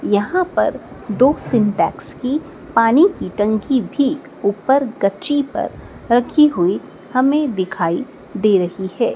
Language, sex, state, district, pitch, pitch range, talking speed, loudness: Hindi, female, Madhya Pradesh, Dhar, 240 Hz, 205-285 Hz, 125 wpm, -18 LUFS